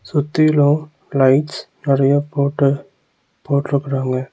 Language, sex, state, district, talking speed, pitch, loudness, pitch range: Tamil, male, Tamil Nadu, Nilgiris, 70 wpm, 140 Hz, -17 LUFS, 135-145 Hz